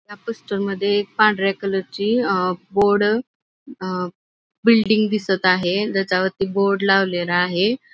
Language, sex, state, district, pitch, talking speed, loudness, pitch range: Marathi, female, Maharashtra, Aurangabad, 200 Hz, 130 wpm, -19 LUFS, 190-215 Hz